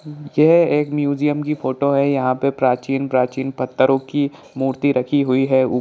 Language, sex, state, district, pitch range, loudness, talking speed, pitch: Hindi, male, Bihar, Jahanabad, 130-145 Hz, -18 LUFS, 155 wpm, 140 Hz